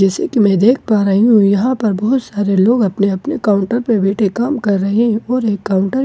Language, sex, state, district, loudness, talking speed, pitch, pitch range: Hindi, female, Bihar, Katihar, -14 LUFS, 250 wpm, 215 Hz, 200-235 Hz